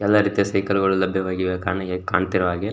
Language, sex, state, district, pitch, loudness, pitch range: Kannada, male, Karnataka, Shimoga, 95 Hz, -21 LUFS, 95-100 Hz